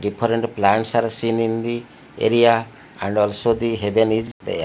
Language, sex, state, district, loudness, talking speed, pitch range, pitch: English, male, Odisha, Malkangiri, -20 LUFS, 165 wpm, 105-115 Hz, 115 Hz